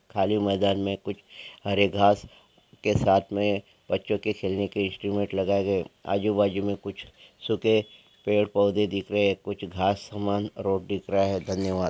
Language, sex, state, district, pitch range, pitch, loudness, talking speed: Hindi, male, Maharashtra, Solapur, 95-105 Hz, 100 Hz, -26 LUFS, 165 wpm